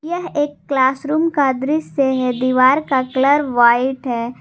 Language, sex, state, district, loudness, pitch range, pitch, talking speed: Hindi, female, Jharkhand, Garhwa, -17 LUFS, 255-290 Hz, 265 Hz, 165 wpm